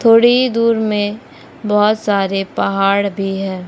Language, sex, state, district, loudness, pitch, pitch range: Hindi, female, Rajasthan, Nagaur, -15 LUFS, 205 Hz, 195-230 Hz